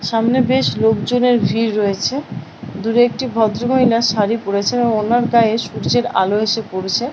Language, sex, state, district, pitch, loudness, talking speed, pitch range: Bengali, female, West Bengal, Paschim Medinipur, 225 Hz, -16 LUFS, 150 wpm, 205-240 Hz